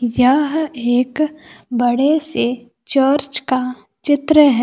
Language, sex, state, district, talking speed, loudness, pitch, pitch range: Hindi, female, Jharkhand, Palamu, 105 wpm, -17 LUFS, 270 Hz, 245-300 Hz